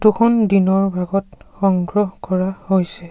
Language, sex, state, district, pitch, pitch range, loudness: Assamese, male, Assam, Sonitpur, 195 Hz, 185-205 Hz, -18 LUFS